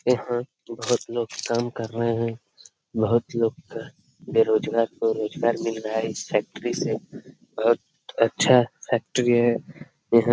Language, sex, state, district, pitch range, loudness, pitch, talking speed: Hindi, male, Bihar, Jamui, 115-120 Hz, -24 LUFS, 115 Hz, 135 wpm